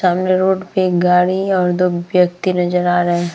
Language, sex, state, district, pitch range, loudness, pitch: Hindi, female, Bihar, Vaishali, 175-185 Hz, -15 LUFS, 180 Hz